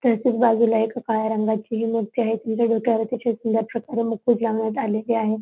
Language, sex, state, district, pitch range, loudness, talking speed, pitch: Marathi, female, Maharashtra, Dhule, 220-235 Hz, -22 LUFS, 190 wpm, 225 Hz